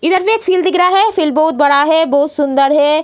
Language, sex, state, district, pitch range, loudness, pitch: Hindi, female, Bihar, Jamui, 295-370 Hz, -12 LUFS, 315 Hz